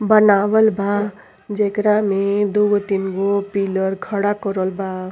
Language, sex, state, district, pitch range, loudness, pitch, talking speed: Bhojpuri, female, Uttar Pradesh, Ghazipur, 195-210 Hz, -18 LUFS, 200 Hz, 130 wpm